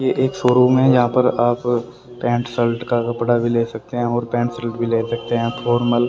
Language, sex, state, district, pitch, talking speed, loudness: Hindi, male, Haryana, Rohtak, 120 Hz, 235 wpm, -18 LUFS